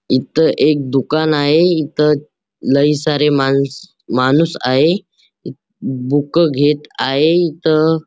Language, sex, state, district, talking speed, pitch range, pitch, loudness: Marathi, male, Maharashtra, Chandrapur, 105 wpm, 140-160 Hz, 150 Hz, -15 LUFS